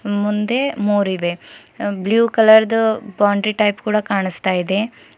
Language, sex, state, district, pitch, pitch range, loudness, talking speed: Kannada, female, Karnataka, Bidar, 210 Hz, 200-220 Hz, -17 LUFS, 105 wpm